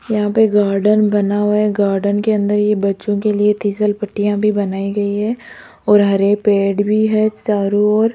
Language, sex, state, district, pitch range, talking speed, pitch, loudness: Hindi, female, Rajasthan, Jaipur, 205-210 Hz, 190 wpm, 205 Hz, -15 LUFS